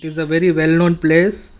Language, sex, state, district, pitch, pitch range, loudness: English, male, Karnataka, Bangalore, 165 Hz, 160-175 Hz, -15 LUFS